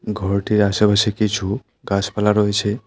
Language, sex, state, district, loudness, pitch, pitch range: Bengali, male, West Bengal, Alipurduar, -19 LUFS, 105 Hz, 100-105 Hz